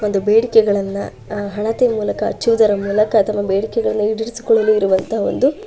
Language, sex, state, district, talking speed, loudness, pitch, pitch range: Kannada, female, Karnataka, Shimoga, 150 wpm, -17 LUFS, 215 Hz, 205-225 Hz